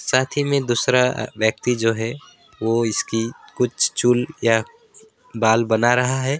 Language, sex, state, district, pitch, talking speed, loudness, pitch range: Hindi, male, West Bengal, Alipurduar, 125 Hz, 150 wpm, -20 LUFS, 115-135 Hz